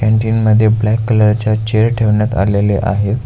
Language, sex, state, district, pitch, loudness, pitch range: Marathi, male, Maharashtra, Aurangabad, 110 Hz, -13 LUFS, 105-110 Hz